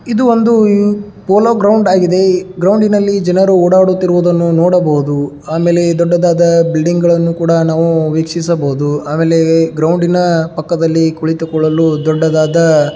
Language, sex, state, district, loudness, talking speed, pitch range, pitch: Kannada, male, Karnataka, Dharwad, -11 LUFS, 110 wpm, 160-185 Hz, 170 Hz